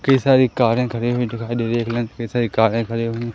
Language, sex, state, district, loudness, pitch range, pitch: Hindi, male, Madhya Pradesh, Katni, -19 LUFS, 115-120 Hz, 120 Hz